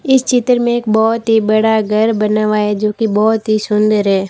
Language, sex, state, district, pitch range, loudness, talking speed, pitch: Hindi, female, Rajasthan, Barmer, 210-225 Hz, -13 LUFS, 225 wpm, 220 Hz